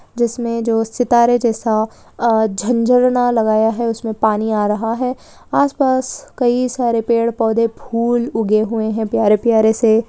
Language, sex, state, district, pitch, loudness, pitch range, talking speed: Hindi, female, Chhattisgarh, Balrampur, 230 Hz, -16 LUFS, 220-240 Hz, 160 wpm